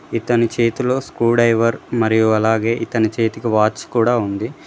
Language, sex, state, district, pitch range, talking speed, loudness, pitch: Telugu, male, Telangana, Mahabubabad, 110-120 Hz, 130 wpm, -17 LUFS, 115 Hz